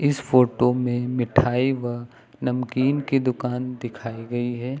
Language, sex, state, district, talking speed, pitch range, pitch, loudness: Hindi, male, Uttar Pradesh, Lucknow, 135 wpm, 120-130 Hz, 125 Hz, -23 LUFS